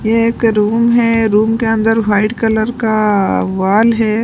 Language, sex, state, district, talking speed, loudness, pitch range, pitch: Hindi, female, Punjab, Pathankot, 170 wpm, -13 LUFS, 210-225 Hz, 220 Hz